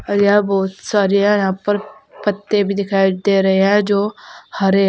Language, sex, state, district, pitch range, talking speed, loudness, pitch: Hindi, female, Uttar Pradesh, Saharanpur, 195-205 Hz, 185 wpm, -16 LUFS, 200 Hz